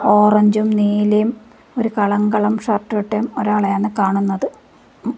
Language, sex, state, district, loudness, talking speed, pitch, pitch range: Malayalam, female, Kerala, Kasaragod, -17 LUFS, 80 wpm, 210 Hz, 205-220 Hz